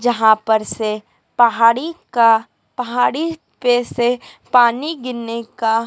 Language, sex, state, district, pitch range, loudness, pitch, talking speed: Hindi, female, Madhya Pradesh, Dhar, 225-250 Hz, -17 LUFS, 235 Hz, 110 wpm